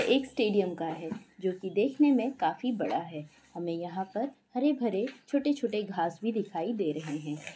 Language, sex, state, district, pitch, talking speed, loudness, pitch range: Hindi, female, Bihar, Sitamarhi, 210 Hz, 190 wpm, -31 LUFS, 170-250 Hz